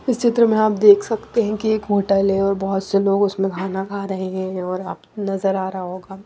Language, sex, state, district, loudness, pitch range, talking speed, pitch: Hindi, female, Punjab, Pathankot, -19 LUFS, 190-210 Hz, 240 wpm, 195 Hz